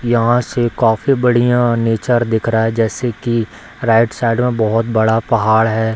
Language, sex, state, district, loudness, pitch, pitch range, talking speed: Hindi, female, Bihar, Samastipur, -15 LUFS, 115 Hz, 110-120 Hz, 170 wpm